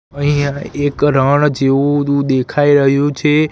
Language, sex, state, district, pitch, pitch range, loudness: Gujarati, male, Gujarat, Gandhinagar, 145 Hz, 140-145 Hz, -14 LUFS